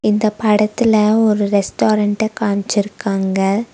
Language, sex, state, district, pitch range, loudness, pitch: Tamil, female, Tamil Nadu, Nilgiris, 200-215 Hz, -16 LUFS, 210 Hz